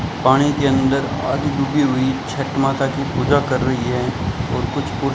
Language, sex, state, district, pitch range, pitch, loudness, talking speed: Hindi, male, Rajasthan, Bikaner, 130-140 Hz, 135 Hz, -19 LUFS, 185 wpm